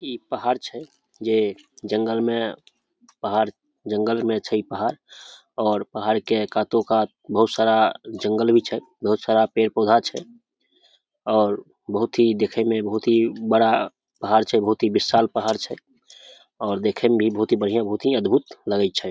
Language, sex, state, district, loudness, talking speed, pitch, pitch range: Maithili, male, Bihar, Samastipur, -22 LUFS, 165 wpm, 110 Hz, 110-115 Hz